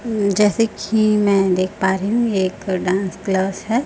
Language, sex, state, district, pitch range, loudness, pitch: Hindi, female, Chhattisgarh, Raipur, 190-215 Hz, -18 LUFS, 200 Hz